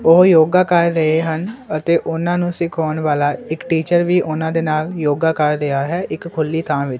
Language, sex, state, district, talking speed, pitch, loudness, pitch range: Punjabi, male, Punjab, Kapurthala, 205 wpm, 160 Hz, -17 LUFS, 155-175 Hz